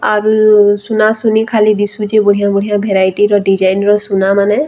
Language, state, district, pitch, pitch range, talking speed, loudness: Sambalpuri, Odisha, Sambalpur, 205 Hz, 200-215 Hz, 130 wpm, -11 LUFS